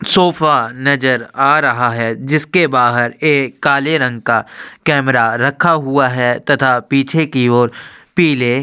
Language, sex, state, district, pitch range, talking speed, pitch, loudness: Hindi, male, Chhattisgarh, Sukma, 120-150 Hz, 145 wpm, 135 Hz, -14 LUFS